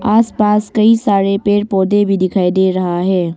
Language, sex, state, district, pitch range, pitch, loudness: Hindi, female, Arunachal Pradesh, Longding, 185-210 Hz, 200 Hz, -13 LUFS